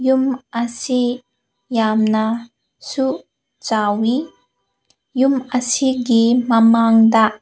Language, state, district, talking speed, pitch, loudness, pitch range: Manipuri, Manipur, Imphal West, 65 wpm, 240 Hz, -17 LUFS, 225-260 Hz